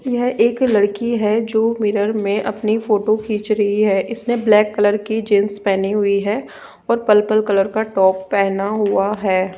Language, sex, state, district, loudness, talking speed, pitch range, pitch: Hindi, female, Rajasthan, Jaipur, -17 LUFS, 175 wpm, 200-220 Hz, 210 Hz